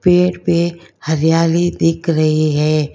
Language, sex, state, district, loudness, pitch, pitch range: Hindi, female, Karnataka, Bangalore, -15 LUFS, 165 Hz, 155-175 Hz